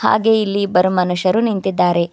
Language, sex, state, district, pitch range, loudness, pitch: Kannada, female, Karnataka, Bidar, 180-210 Hz, -16 LUFS, 190 Hz